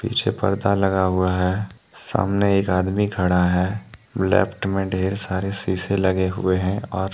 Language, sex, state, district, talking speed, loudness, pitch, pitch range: Hindi, male, Jharkhand, Deoghar, 160 wpm, -21 LUFS, 95 Hz, 95-100 Hz